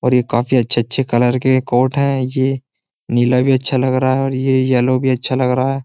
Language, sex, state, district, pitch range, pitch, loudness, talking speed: Hindi, male, Uttar Pradesh, Jyotiba Phule Nagar, 125-130 Hz, 130 Hz, -15 LUFS, 235 wpm